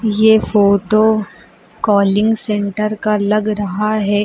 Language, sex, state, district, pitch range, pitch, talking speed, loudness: Hindi, female, Uttar Pradesh, Lucknow, 205-215 Hz, 210 Hz, 115 wpm, -15 LUFS